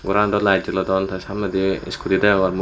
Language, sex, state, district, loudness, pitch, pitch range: Chakma, male, Tripura, West Tripura, -20 LUFS, 95 Hz, 95-100 Hz